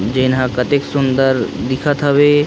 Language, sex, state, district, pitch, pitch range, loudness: Chhattisgarhi, male, Chhattisgarh, Rajnandgaon, 135 Hz, 130-145 Hz, -15 LUFS